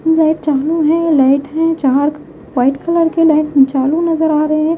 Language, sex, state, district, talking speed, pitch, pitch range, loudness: Hindi, female, Bihar, Katihar, 165 wpm, 310 Hz, 280-320 Hz, -13 LUFS